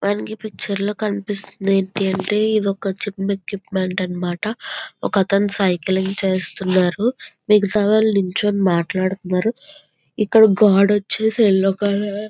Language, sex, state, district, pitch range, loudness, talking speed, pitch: Telugu, female, Andhra Pradesh, Visakhapatnam, 190-210 Hz, -19 LUFS, 100 wpm, 200 Hz